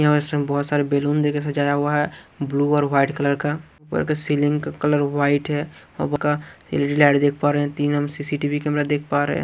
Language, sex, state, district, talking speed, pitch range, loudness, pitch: Hindi, male, Punjab, Kapurthala, 195 wpm, 145-150 Hz, -21 LUFS, 145 Hz